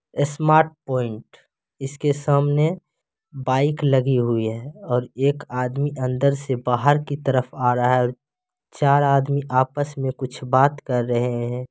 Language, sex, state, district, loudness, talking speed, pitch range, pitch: Angika, male, Bihar, Begusarai, -21 LUFS, 145 wpm, 125-145 Hz, 135 Hz